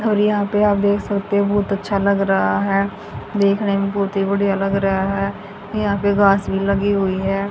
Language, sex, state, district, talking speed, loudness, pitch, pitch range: Hindi, female, Haryana, Jhajjar, 215 wpm, -18 LUFS, 200 Hz, 195-205 Hz